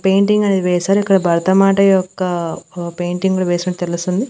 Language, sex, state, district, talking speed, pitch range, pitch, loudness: Telugu, female, Andhra Pradesh, Annamaya, 155 wpm, 175-195 Hz, 185 Hz, -16 LUFS